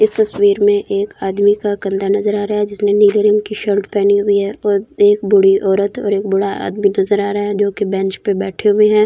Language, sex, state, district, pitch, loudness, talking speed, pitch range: Hindi, female, Delhi, New Delhi, 205 Hz, -15 LUFS, 260 wpm, 200-210 Hz